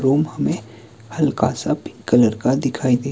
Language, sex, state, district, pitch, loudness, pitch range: Hindi, male, Himachal Pradesh, Shimla, 125 Hz, -20 LUFS, 115-140 Hz